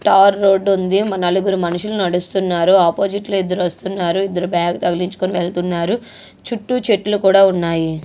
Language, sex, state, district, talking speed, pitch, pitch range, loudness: Telugu, female, Andhra Pradesh, Guntur, 110 wpm, 190 Hz, 175-195 Hz, -16 LUFS